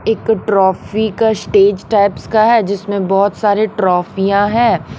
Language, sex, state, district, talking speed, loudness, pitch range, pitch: Hindi, female, Haryana, Rohtak, 145 wpm, -14 LUFS, 195-220 Hz, 205 Hz